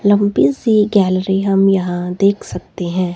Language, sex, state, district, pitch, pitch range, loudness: Hindi, female, Himachal Pradesh, Shimla, 195 Hz, 185-205 Hz, -15 LUFS